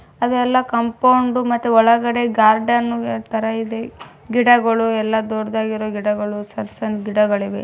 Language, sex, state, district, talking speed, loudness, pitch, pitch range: Kannada, female, Karnataka, Bijapur, 110 wpm, -18 LUFS, 225 Hz, 215-240 Hz